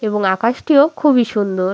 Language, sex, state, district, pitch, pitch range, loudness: Bengali, female, West Bengal, Malda, 225 Hz, 195-280 Hz, -15 LUFS